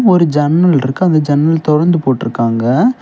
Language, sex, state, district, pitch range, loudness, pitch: Tamil, male, Tamil Nadu, Kanyakumari, 130-175 Hz, -12 LUFS, 155 Hz